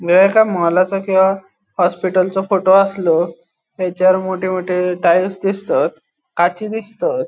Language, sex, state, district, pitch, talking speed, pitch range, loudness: Konkani, male, Goa, North and South Goa, 190 Hz, 100 wpm, 180-195 Hz, -16 LUFS